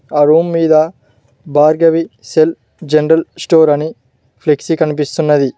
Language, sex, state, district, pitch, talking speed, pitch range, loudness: Telugu, male, Telangana, Mahabubabad, 155 Hz, 110 wpm, 145-160 Hz, -13 LUFS